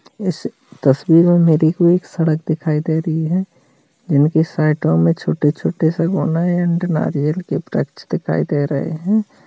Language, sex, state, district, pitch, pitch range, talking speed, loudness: Hindi, male, Bihar, Jahanabad, 160 Hz, 150-175 Hz, 140 wpm, -17 LUFS